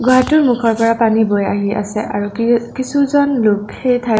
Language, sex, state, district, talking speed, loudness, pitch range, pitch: Assamese, female, Assam, Sonitpur, 170 wpm, -15 LUFS, 210-255 Hz, 230 Hz